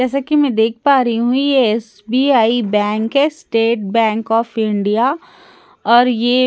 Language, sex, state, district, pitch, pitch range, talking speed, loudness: Hindi, female, Bihar, Katihar, 240 Hz, 225-275 Hz, 165 wpm, -15 LUFS